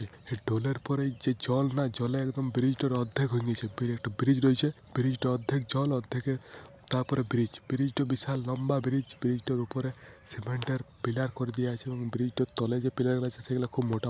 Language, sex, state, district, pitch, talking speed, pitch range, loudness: Bengali, male, Jharkhand, Jamtara, 130 Hz, 205 wpm, 120-135 Hz, -30 LUFS